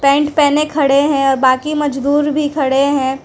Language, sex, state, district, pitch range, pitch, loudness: Hindi, female, Gujarat, Valsad, 275-295 Hz, 285 Hz, -14 LUFS